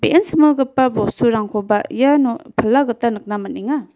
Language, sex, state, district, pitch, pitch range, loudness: Garo, female, Meghalaya, West Garo Hills, 245 Hz, 215-280 Hz, -17 LUFS